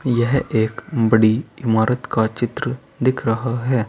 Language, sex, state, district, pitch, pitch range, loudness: Hindi, male, Uttar Pradesh, Saharanpur, 120 Hz, 110-130 Hz, -19 LUFS